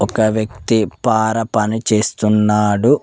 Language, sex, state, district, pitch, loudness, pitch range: Telugu, male, Telangana, Mahabubabad, 110 Hz, -16 LUFS, 105-110 Hz